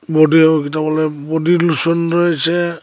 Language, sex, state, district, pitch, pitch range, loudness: Bengali, male, Tripura, Unakoti, 160 Hz, 155-170 Hz, -14 LUFS